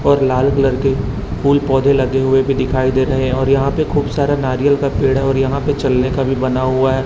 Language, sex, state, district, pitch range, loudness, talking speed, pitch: Hindi, male, Chhattisgarh, Raipur, 130-140 Hz, -15 LUFS, 265 wpm, 135 Hz